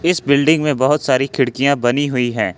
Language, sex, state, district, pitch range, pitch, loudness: Hindi, male, Jharkhand, Ranchi, 130-145 Hz, 140 Hz, -16 LUFS